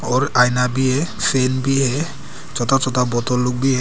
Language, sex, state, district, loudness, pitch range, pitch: Hindi, male, Arunachal Pradesh, Papum Pare, -18 LUFS, 125-135 Hz, 130 Hz